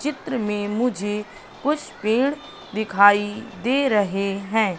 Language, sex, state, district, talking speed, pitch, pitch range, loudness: Hindi, female, Madhya Pradesh, Katni, 115 wpm, 215 Hz, 205-250 Hz, -22 LUFS